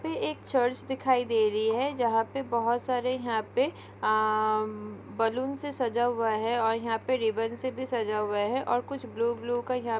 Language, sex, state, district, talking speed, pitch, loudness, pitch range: Hindi, female, Maharashtra, Aurangabad, 185 wpm, 235 Hz, -29 LUFS, 225-255 Hz